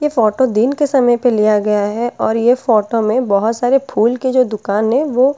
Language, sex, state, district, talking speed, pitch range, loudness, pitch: Hindi, female, Delhi, New Delhi, 245 wpm, 215-260 Hz, -14 LUFS, 240 Hz